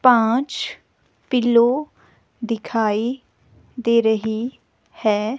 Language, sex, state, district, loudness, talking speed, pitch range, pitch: Hindi, female, Himachal Pradesh, Shimla, -20 LUFS, 65 wpm, 220-250 Hz, 235 Hz